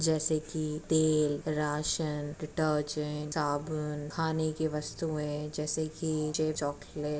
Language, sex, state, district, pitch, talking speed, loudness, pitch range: Hindi, female, Uttar Pradesh, Etah, 155 Hz, 110 wpm, -32 LUFS, 150-155 Hz